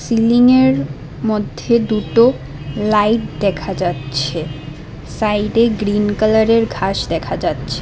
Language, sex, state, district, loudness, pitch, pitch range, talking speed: Bengali, female, Assam, Hailakandi, -16 LUFS, 210 Hz, 150-225 Hz, 90 wpm